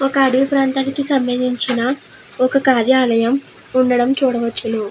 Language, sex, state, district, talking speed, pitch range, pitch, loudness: Telugu, female, Andhra Pradesh, Krishna, 100 wpm, 245-270 Hz, 255 Hz, -16 LUFS